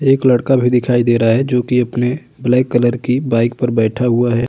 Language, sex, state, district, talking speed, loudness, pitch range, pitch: Hindi, male, Uttar Pradesh, Budaun, 225 wpm, -15 LUFS, 120-125 Hz, 125 Hz